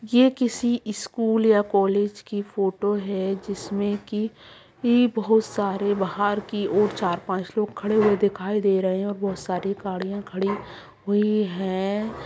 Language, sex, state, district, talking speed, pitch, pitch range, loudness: Hindi, female, Bihar, Jamui, 160 wpm, 205 Hz, 195-215 Hz, -24 LUFS